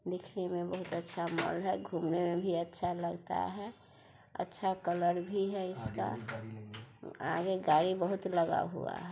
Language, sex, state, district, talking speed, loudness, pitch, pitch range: Hindi, female, Bihar, Sitamarhi, 150 wpm, -35 LUFS, 175 Hz, 165-185 Hz